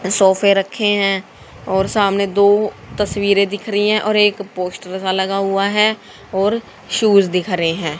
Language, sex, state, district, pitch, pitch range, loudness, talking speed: Hindi, female, Haryana, Jhajjar, 200 Hz, 190-205 Hz, -16 LUFS, 165 wpm